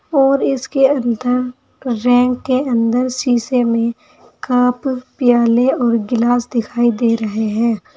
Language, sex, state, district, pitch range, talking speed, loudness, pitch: Hindi, female, Uttar Pradesh, Saharanpur, 235-255 Hz, 120 wpm, -16 LUFS, 245 Hz